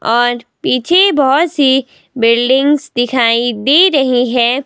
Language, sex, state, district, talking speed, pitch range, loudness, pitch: Hindi, female, Himachal Pradesh, Shimla, 115 wpm, 240-280 Hz, -12 LUFS, 255 Hz